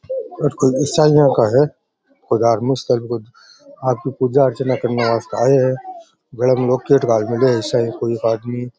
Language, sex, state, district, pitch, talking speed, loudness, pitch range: Rajasthani, male, Rajasthan, Nagaur, 130 Hz, 135 wpm, -17 LUFS, 120-140 Hz